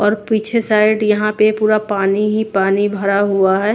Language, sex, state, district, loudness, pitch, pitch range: Hindi, female, Haryana, Jhajjar, -15 LUFS, 210 Hz, 200-215 Hz